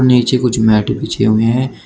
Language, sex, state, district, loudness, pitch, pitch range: Hindi, male, Uttar Pradesh, Shamli, -13 LUFS, 125 Hz, 110-130 Hz